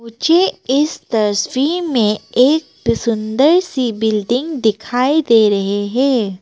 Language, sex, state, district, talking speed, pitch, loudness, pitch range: Hindi, female, Arunachal Pradesh, Papum Pare, 110 wpm, 245 Hz, -15 LUFS, 220-295 Hz